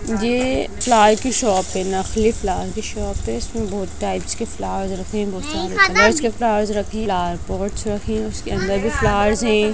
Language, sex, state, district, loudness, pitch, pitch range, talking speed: Hindi, female, Bihar, Samastipur, -19 LUFS, 210 Hz, 190-225 Hz, 205 wpm